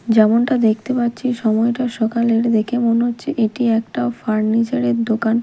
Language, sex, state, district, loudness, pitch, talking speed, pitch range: Bengali, female, Odisha, Malkangiri, -18 LUFS, 230 Hz, 145 wpm, 220-240 Hz